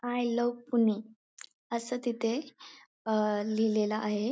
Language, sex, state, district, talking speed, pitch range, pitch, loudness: Marathi, female, Maharashtra, Pune, 110 wpm, 215-245 Hz, 230 Hz, -31 LUFS